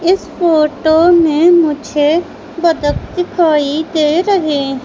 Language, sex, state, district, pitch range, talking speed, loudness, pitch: Hindi, female, Madhya Pradesh, Umaria, 300-345 Hz, 100 wpm, -13 LUFS, 320 Hz